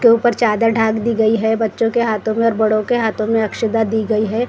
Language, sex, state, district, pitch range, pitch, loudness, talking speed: Hindi, female, Maharashtra, Gondia, 220-230 Hz, 225 Hz, -16 LUFS, 255 wpm